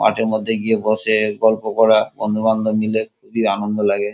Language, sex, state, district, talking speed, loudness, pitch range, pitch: Bengali, male, West Bengal, Kolkata, 160 wpm, -18 LUFS, 105-110 Hz, 110 Hz